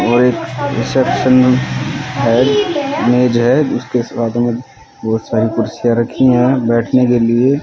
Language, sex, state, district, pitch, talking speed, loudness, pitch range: Hindi, male, Haryana, Rohtak, 120 Hz, 135 wpm, -14 LUFS, 115-130 Hz